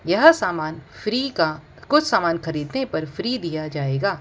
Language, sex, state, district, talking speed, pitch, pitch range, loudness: Hindi, female, Gujarat, Valsad, 155 wpm, 170 Hz, 155-255 Hz, -22 LUFS